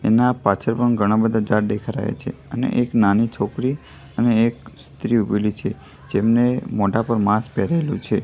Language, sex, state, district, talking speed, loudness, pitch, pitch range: Gujarati, male, Gujarat, Gandhinagar, 175 wpm, -20 LUFS, 115 Hz, 105-120 Hz